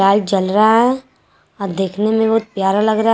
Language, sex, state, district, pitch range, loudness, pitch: Hindi, female, Jharkhand, Garhwa, 195-225 Hz, -16 LUFS, 215 Hz